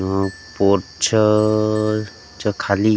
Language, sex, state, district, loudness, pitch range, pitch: Marathi, male, Maharashtra, Gondia, -19 LUFS, 95-110 Hz, 105 Hz